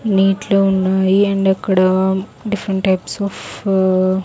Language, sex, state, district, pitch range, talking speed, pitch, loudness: Telugu, female, Andhra Pradesh, Sri Satya Sai, 190-195 Hz, 125 wpm, 190 Hz, -16 LUFS